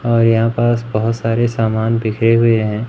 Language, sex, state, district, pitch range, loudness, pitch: Hindi, male, Madhya Pradesh, Umaria, 110-115 Hz, -15 LUFS, 115 Hz